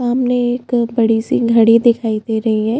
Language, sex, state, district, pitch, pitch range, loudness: Hindi, female, Chhattisgarh, Bastar, 230 Hz, 225-245 Hz, -15 LUFS